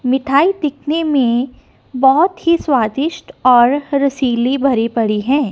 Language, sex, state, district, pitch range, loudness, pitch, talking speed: Hindi, female, Punjab, Kapurthala, 250-295 Hz, -15 LUFS, 270 Hz, 120 wpm